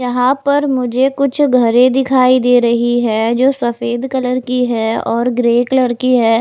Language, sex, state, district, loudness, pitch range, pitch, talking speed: Hindi, female, Bihar, West Champaran, -13 LUFS, 240-260 Hz, 250 Hz, 180 wpm